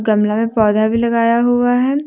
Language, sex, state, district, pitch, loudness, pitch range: Hindi, female, Jharkhand, Deoghar, 230 Hz, -14 LUFS, 215-245 Hz